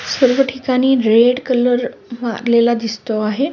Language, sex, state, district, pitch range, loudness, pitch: Marathi, female, Maharashtra, Sindhudurg, 235-255 Hz, -15 LUFS, 245 Hz